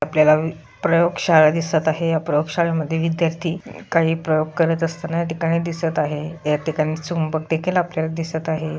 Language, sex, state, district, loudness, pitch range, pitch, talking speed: Marathi, female, Maharashtra, Solapur, -20 LUFS, 155-165 Hz, 160 Hz, 170 wpm